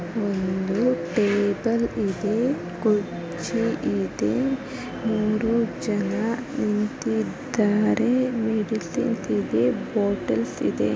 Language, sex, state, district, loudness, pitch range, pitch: Kannada, female, Karnataka, Chamarajanagar, -24 LUFS, 190-230 Hz, 210 Hz